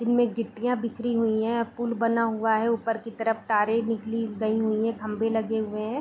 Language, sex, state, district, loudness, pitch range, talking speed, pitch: Hindi, female, Bihar, Vaishali, -26 LUFS, 220-230 Hz, 210 wpm, 225 Hz